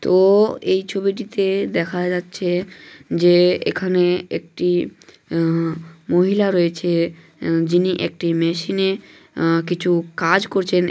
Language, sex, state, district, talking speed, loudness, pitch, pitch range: Bengali, male, West Bengal, North 24 Parganas, 105 wpm, -19 LUFS, 180 Hz, 170-190 Hz